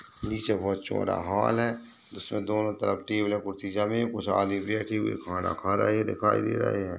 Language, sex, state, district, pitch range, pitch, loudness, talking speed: Hindi, male, Chhattisgarh, Balrampur, 100-110 Hz, 105 Hz, -28 LUFS, 200 wpm